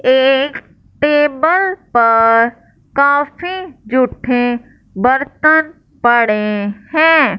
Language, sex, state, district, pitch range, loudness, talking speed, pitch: Hindi, male, Punjab, Fazilka, 235-310 Hz, -13 LUFS, 65 wpm, 260 Hz